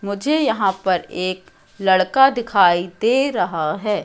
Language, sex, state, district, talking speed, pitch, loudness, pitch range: Hindi, female, Madhya Pradesh, Katni, 135 wpm, 200 Hz, -18 LUFS, 185-240 Hz